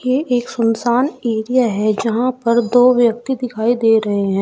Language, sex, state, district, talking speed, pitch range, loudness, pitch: Hindi, female, Uttar Pradesh, Shamli, 175 wpm, 225-250 Hz, -16 LUFS, 235 Hz